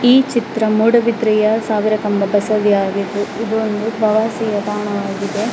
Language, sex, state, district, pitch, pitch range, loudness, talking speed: Kannada, female, Karnataka, Dakshina Kannada, 215 Hz, 205-225 Hz, -16 LUFS, 130 wpm